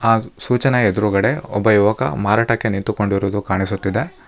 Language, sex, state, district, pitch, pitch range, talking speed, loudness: Kannada, male, Karnataka, Bangalore, 105 Hz, 100-115 Hz, 110 wpm, -18 LUFS